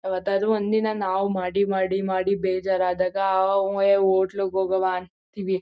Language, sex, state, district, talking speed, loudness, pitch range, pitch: Kannada, female, Karnataka, Mysore, 130 wpm, -23 LUFS, 190-195 Hz, 190 Hz